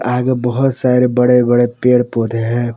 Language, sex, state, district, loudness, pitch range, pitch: Hindi, male, Jharkhand, Palamu, -14 LUFS, 120-125 Hz, 125 Hz